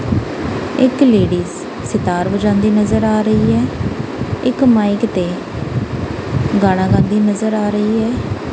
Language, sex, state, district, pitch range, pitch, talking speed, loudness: Punjabi, female, Punjab, Kapurthala, 180-220 Hz, 210 Hz, 120 wpm, -15 LUFS